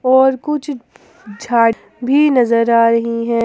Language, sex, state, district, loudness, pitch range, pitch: Hindi, female, Jharkhand, Ranchi, -14 LUFS, 230-265 Hz, 235 Hz